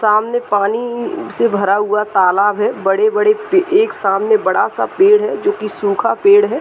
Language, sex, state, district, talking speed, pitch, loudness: Hindi, female, Uttar Pradesh, Deoria, 170 wpm, 235 Hz, -14 LUFS